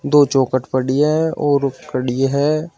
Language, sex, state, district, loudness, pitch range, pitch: Hindi, male, Uttar Pradesh, Shamli, -17 LUFS, 130-150 Hz, 140 Hz